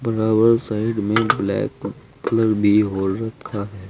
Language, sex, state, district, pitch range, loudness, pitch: Hindi, male, Uttar Pradesh, Saharanpur, 105-115 Hz, -20 LUFS, 110 Hz